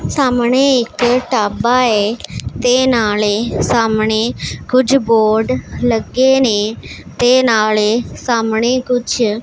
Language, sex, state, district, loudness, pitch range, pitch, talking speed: Punjabi, female, Punjab, Pathankot, -14 LUFS, 220-255 Hz, 240 Hz, 95 wpm